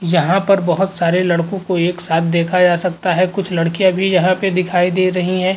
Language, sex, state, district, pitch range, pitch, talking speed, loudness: Hindi, male, Uttar Pradesh, Muzaffarnagar, 175-185 Hz, 180 Hz, 225 wpm, -15 LUFS